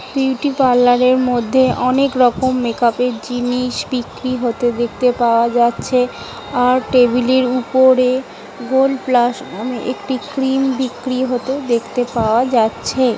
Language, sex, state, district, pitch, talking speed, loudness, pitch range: Bengali, female, West Bengal, Paschim Medinipur, 250 Hz, 125 wpm, -16 LUFS, 245-260 Hz